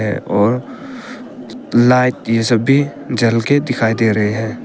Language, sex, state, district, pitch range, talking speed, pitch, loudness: Hindi, male, Arunachal Pradesh, Papum Pare, 115-140 Hz, 140 wpm, 125 Hz, -15 LUFS